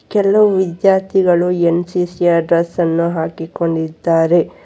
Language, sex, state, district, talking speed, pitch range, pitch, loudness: Kannada, female, Karnataka, Bangalore, 90 wpm, 165-180 Hz, 170 Hz, -15 LUFS